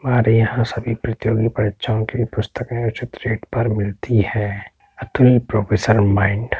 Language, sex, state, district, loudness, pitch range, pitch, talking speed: Hindi, male, Uttar Pradesh, Etah, -19 LUFS, 105-120 Hz, 110 Hz, 135 wpm